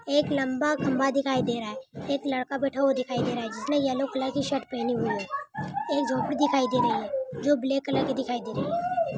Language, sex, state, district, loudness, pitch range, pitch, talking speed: Hindi, female, West Bengal, Kolkata, -27 LUFS, 255-285 Hz, 270 Hz, 240 wpm